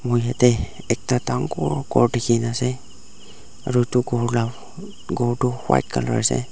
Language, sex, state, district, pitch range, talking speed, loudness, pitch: Nagamese, male, Nagaland, Dimapur, 115-125 Hz, 145 wpm, -21 LUFS, 120 Hz